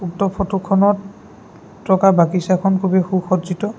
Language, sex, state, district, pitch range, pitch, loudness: Assamese, male, Assam, Sonitpur, 185-200 Hz, 190 Hz, -17 LUFS